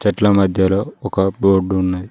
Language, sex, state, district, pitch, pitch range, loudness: Telugu, male, Telangana, Mahabubabad, 95 Hz, 95-105 Hz, -16 LUFS